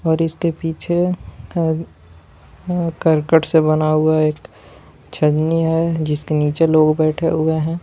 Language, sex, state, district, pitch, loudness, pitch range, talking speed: Hindi, male, Jharkhand, Palamu, 160 Hz, -17 LUFS, 155-165 Hz, 145 wpm